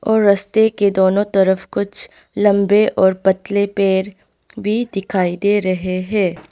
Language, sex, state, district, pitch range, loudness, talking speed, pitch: Hindi, female, West Bengal, Alipurduar, 190-205 Hz, -16 LUFS, 140 wpm, 200 Hz